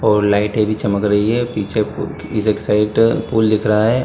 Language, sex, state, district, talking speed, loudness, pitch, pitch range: Hindi, male, Bihar, Saran, 220 wpm, -17 LUFS, 105 Hz, 105-110 Hz